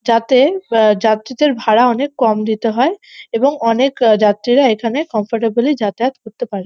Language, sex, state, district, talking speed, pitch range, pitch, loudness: Bengali, female, West Bengal, North 24 Parganas, 145 wpm, 220-265 Hz, 235 Hz, -14 LUFS